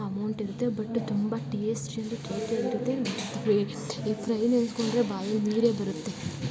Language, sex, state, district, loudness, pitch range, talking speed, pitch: Kannada, female, Karnataka, Belgaum, -29 LUFS, 210-230 Hz, 140 wpm, 220 Hz